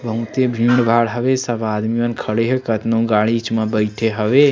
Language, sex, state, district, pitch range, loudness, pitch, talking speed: Chhattisgarhi, male, Chhattisgarh, Sarguja, 110-120 Hz, -18 LUFS, 115 Hz, 210 wpm